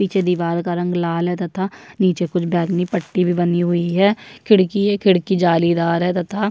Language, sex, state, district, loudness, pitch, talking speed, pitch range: Hindi, female, Chhattisgarh, Bastar, -18 LUFS, 180 Hz, 205 wpm, 175-190 Hz